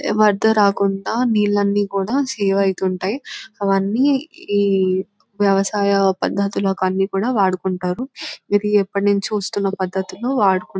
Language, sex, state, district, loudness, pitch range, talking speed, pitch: Telugu, female, Telangana, Nalgonda, -19 LUFS, 195-215 Hz, 110 wpm, 200 Hz